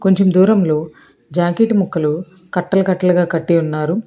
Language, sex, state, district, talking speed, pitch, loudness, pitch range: Telugu, female, Telangana, Hyderabad, 105 wpm, 180 Hz, -16 LUFS, 165-190 Hz